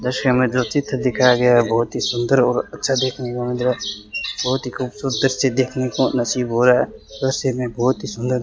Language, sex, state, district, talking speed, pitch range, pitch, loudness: Hindi, male, Rajasthan, Bikaner, 235 wpm, 120-130 Hz, 125 Hz, -19 LUFS